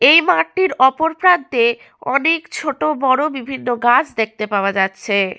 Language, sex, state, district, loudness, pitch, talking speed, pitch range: Bengali, female, West Bengal, Malda, -16 LUFS, 270 Hz, 120 wpm, 235-320 Hz